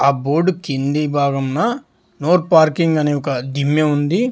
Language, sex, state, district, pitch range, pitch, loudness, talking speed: Telugu, male, Telangana, Hyderabad, 140-170 Hz, 150 Hz, -17 LUFS, 140 wpm